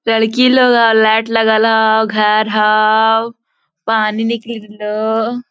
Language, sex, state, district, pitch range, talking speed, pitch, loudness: Hindi, female, Jharkhand, Sahebganj, 215-230 Hz, 140 wpm, 220 Hz, -13 LUFS